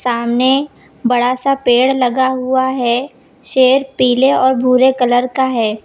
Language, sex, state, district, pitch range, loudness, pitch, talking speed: Hindi, female, Uttar Pradesh, Lucknow, 245-260 Hz, -14 LUFS, 255 Hz, 145 wpm